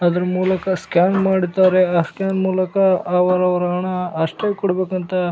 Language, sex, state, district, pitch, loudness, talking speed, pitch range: Kannada, male, Karnataka, Bellary, 185 Hz, -18 LUFS, 145 wpm, 180-190 Hz